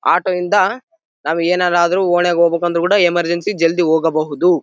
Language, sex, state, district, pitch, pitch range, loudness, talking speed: Kannada, male, Karnataka, Bellary, 175 Hz, 170-180 Hz, -15 LUFS, 130 wpm